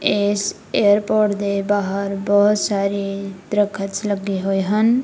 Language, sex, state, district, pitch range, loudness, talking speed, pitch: Punjabi, female, Punjab, Kapurthala, 195-205 Hz, -19 LUFS, 120 wpm, 200 Hz